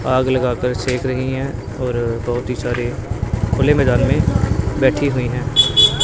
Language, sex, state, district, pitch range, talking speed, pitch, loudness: Hindi, male, Punjab, Pathankot, 115-130 Hz, 150 wpm, 125 Hz, -17 LUFS